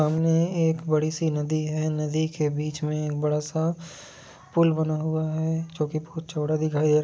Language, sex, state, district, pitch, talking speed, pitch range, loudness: Hindi, male, Jharkhand, Jamtara, 155 Hz, 205 wpm, 150-160 Hz, -26 LUFS